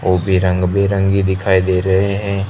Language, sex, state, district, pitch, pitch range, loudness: Hindi, male, Gujarat, Gandhinagar, 95 Hz, 95-100 Hz, -15 LUFS